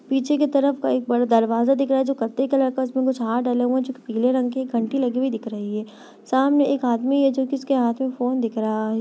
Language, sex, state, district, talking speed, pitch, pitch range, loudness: Hindi, female, Chhattisgarh, Bastar, 300 wpm, 255 Hz, 235-270 Hz, -22 LUFS